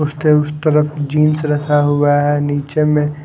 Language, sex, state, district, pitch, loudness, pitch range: Hindi, male, Haryana, Rohtak, 150 Hz, -15 LUFS, 145-150 Hz